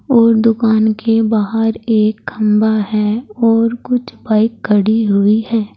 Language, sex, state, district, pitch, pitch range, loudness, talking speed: Hindi, female, Uttar Pradesh, Saharanpur, 220 Hz, 215-230 Hz, -14 LUFS, 135 wpm